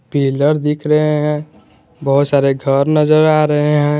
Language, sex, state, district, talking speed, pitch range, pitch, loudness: Hindi, male, Jharkhand, Garhwa, 165 wpm, 140-150 Hz, 150 Hz, -14 LUFS